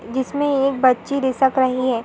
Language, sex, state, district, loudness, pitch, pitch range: Hindi, female, Uttar Pradesh, Hamirpur, -19 LUFS, 260 Hz, 255-275 Hz